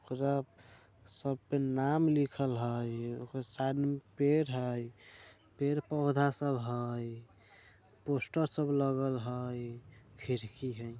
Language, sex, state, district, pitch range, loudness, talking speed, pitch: Bajjika, male, Bihar, Vaishali, 115-140 Hz, -34 LUFS, 100 wpm, 125 Hz